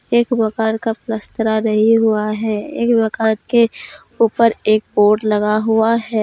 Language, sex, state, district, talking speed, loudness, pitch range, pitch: Hindi, female, Jharkhand, Deoghar, 155 wpm, -16 LUFS, 215-230 Hz, 220 Hz